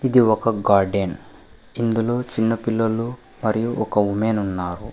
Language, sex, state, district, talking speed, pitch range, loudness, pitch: Telugu, male, Telangana, Hyderabad, 110 wpm, 105-115 Hz, -21 LUFS, 110 Hz